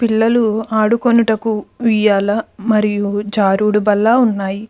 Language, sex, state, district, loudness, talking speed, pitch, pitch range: Telugu, female, Andhra Pradesh, Krishna, -15 LUFS, 90 wpm, 215 Hz, 205-225 Hz